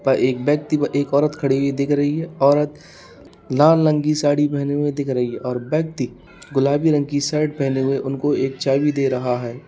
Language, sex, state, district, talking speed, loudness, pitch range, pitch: Hindi, male, Uttar Pradesh, Lalitpur, 210 wpm, -19 LUFS, 135-150 Hz, 145 Hz